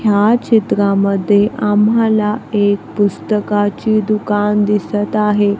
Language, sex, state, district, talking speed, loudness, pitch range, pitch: Marathi, female, Maharashtra, Gondia, 85 wpm, -14 LUFS, 205-215 Hz, 210 Hz